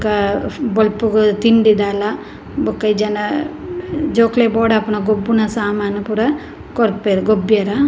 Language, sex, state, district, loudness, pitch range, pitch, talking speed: Tulu, female, Karnataka, Dakshina Kannada, -16 LUFS, 210-230 Hz, 215 Hz, 100 wpm